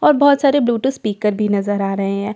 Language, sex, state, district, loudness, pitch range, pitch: Hindi, female, Bihar, Katihar, -17 LUFS, 200-270 Hz, 210 Hz